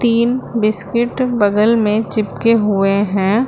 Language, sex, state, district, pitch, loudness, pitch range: Hindi, female, Uttar Pradesh, Lucknow, 220 Hz, -15 LUFS, 205-235 Hz